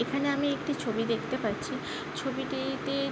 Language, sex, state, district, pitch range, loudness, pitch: Bengali, female, West Bengal, Jhargram, 230-285 Hz, -31 LUFS, 275 Hz